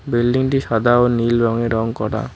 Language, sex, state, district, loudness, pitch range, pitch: Bengali, male, West Bengal, Cooch Behar, -17 LUFS, 115-120 Hz, 120 Hz